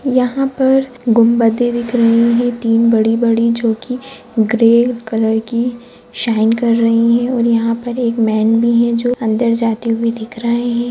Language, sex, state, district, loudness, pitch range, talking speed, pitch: Hindi, female, Bihar, Jamui, -14 LUFS, 230-245 Hz, 170 wpm, 235 Hz